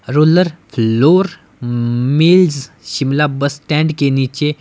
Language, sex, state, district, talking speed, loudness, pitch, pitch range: Hindi, male, Himachal Pradesh, Shimla, 90 wpm, -14 LUFS, 145 Hz, 130-155 Hz